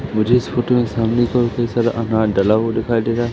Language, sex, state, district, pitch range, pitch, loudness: Hindi, male, Madhya Pradesh, Katni, 110-120 Hz, 115 Hz, -17 LUFS